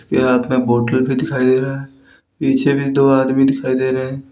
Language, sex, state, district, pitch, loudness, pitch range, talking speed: Hindi, male, Uttar Pradesh, Lalitpur, 130 Hz, -16 LUFS, 130-135 Hz, 210 wpm